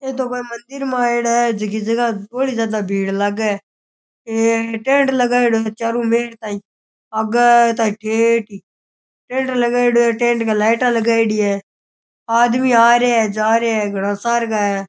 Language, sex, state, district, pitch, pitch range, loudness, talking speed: Rajasthani, male, Rajasthan, Churu, 230 Hz, 215-240 Hz, -17 LUFS, 175 wpm